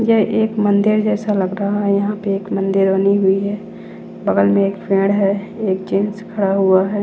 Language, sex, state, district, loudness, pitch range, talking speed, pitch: Hindi, female, Chandigarh, Chandigarh, -17 LUFS, 195-210 Hz, 205 wpm, 200 Hz